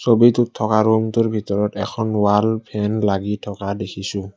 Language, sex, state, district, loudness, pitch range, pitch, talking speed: Assamese, male, Assam, Kamrup Metropolitan, -19 LUFS, 100-110 Hz, 105 Hz, 125 wpm